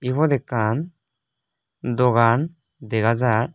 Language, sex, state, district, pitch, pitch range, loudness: Chakma, male, Tripura, West Tripura, 125 Hz, 115-150 Hz, -21 LUFS